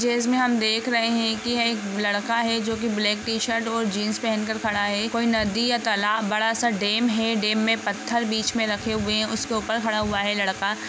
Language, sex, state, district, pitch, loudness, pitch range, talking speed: Hindi, female, Jharkhand, Jamtara, 225 Hz, -23 LUFS, 210-230 Hz, 250 wpm